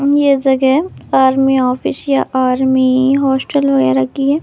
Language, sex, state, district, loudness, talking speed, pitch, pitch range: Hindi, female, Madhya Pradesh, Katni, -13 LUFS, 160 wpm, 265 Hz, 260-275 Hz